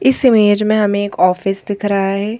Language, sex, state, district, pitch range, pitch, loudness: Hindi, female, Madhya Pradesh, Bhopal, 200-215 Hz, 205 Hz, -14 LUFS